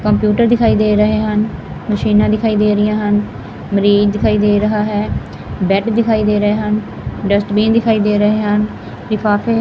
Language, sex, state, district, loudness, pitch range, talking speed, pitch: Punjabi, female, Punjab, Fazilka, -14 LUFS, 205-215 Hz, 160 wpm, 210 Hz